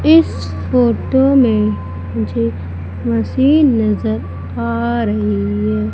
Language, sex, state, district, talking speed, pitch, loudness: Hindi, female, Madhya Pradesh, Umaria, 90 wpm, 105 Hz, -16 LUFS